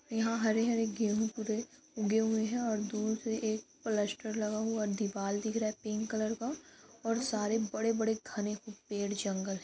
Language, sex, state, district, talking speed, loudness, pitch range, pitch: Hindi, female, Bihar, Lakhisarai, 175 wpm, -34 LUFS, 210-225 Hz, 220 Hz